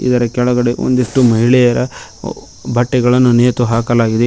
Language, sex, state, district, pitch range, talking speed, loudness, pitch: Kannada, male, Karnataka, Koppal, 120-125 Hz, 85 wpm, -13 LUFS, 120 Hz